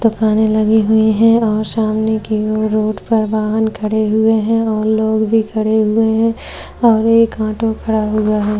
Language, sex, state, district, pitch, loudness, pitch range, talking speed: Hindi, female, Maharashtra, Chandrapur, 220 Hz, -14 LUFS, 215-220 Hz, 180 wpm